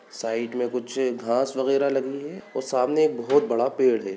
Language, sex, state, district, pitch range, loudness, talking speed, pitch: Hindi, male, Bihar, Sitamarhi, 120-140 Hz, -24 LUFS, 185 wpm, 130 Hz